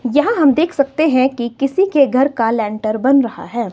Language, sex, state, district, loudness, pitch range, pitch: Hindi, female, Himachal Pradesh, Shimla, -15 LUFS, 235-290 Hz, 270 Hz